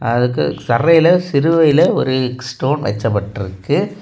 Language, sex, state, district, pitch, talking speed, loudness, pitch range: Tamil, male, Tamil Nadu, Kanyakumari, 130 Hz, 90 wpm, -15 LUFS, 115-160 Hz